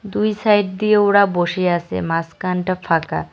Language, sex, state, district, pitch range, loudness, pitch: Bengali, male, West Bengal, Cooch Behar, 175-210 Hz, -18 LUFS, 185 Hz